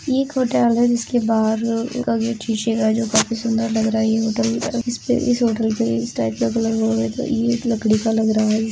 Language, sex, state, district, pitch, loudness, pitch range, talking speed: Hindi, female, Uttar Pradesh, Etah, 225 Hz, -19 LUFS, 220-235 Hz, 245 wpm